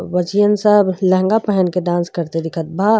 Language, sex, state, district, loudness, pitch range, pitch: Bhojpuri, female, Uttar Pradesh, Gorakhpur, -16 LUFS, 175-205 Hz, 185 Hz